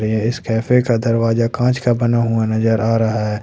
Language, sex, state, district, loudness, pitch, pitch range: Hindi, male, Jharkhand, Ranchi, -17 LUFS, 115 Hz, 110-120 Hz